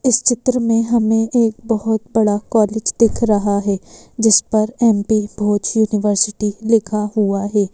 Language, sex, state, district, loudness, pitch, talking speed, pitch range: Hindi, female, Madhya Pradesh, Bhopal, -16 LUFS, 220 Hz, 145 wpm, 210-225 Hz